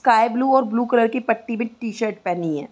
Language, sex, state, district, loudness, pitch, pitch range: Hindi, female, Uttar Pradesh, Gorakhpur, -21 LUFS, 230 Hz, 215-240 Hz